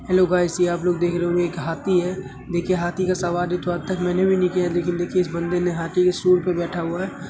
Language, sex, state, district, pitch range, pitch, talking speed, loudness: Hindi, male, Uttar Pradesh, Hamirpur, 175-180 Hz, 175 Hz, 285 wpm, -22 LUFS